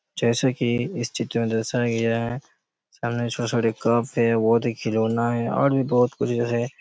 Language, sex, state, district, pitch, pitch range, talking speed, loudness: Hindi, male, Chhattisgarh, Raigarh, 120 Hz, 115-120 Hz, 195 wpm, -23 LUFS